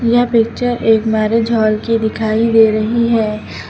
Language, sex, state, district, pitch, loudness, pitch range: Hindi, female, Uttar Pradesh, Lucknow, 225 Hz, -14 LUFS, 215-230 Hz